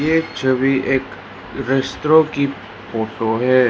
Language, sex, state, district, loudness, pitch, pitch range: Hindi, male, Arunachal Pradesh, Lower Dibang Valley, -18 LUFS, 135 Hz, 125-140 Hz